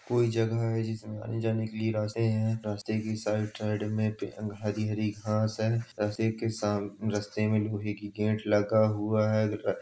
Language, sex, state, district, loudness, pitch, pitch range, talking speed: Hindi, male, Uttar Pradesh, Jalaun, -30 LUFS, 110 Hz, 105-110 Hz, 185 wpm